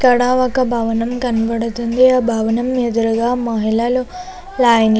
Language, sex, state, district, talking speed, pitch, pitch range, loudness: Telugu, female, Andhra Pradesh, Chittoor, 120 wpm, 240 Hz, 230-255 Hz, -16 LUFS